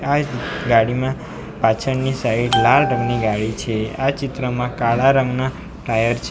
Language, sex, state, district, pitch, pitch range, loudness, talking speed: Gujarati, male, Gujarat, Valsad, 125 Hz, 115-135 Hz, -19 LUFS, 145 wpm